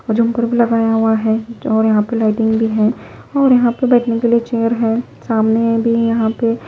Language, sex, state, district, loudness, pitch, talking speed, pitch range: Hindi, female, Punjab, Pathankot, -15 LUFS, 230 Hz, 190 wpm, 225-235 Hz